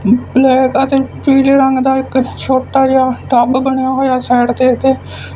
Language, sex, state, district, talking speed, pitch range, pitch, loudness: Punjabi, male, Punjab, Fazilka, 155 wpm, 255-265 Hz, 260 Hz, -12 LUFS